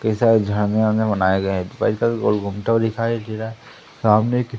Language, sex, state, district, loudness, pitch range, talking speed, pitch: Hindi, male, Madhya Pradesh, Umaria, -19 LUFS, 105-115 Hz, 155 wpm, 110 Hz